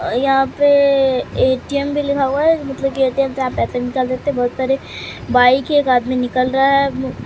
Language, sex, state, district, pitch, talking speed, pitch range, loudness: Hindi, male, Bihar, Katihar, 270 Hz, 215 wpm, 255-275 Hz, -16 LUFS